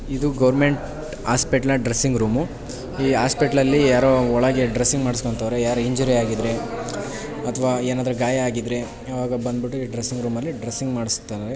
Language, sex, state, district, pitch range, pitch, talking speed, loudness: Kannada, male, Karnataka, Chamarajanagar, 120-135 Hz, 125 Hz, 140 wpm, -21 LUFS